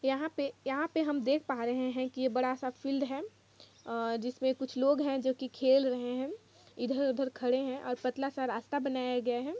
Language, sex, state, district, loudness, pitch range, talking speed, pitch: Hindi, female, Jharkhand, Jamtara, -33 LUFS, 255-275 Hz, 225 wpm, 260 Hz